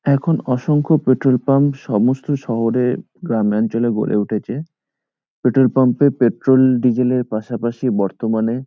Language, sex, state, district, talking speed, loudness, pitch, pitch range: Bengali, male, West Bengal, Paschim Medinipur, 125 wpm, -17 LUFS, 125 Hz, 115-135 Hz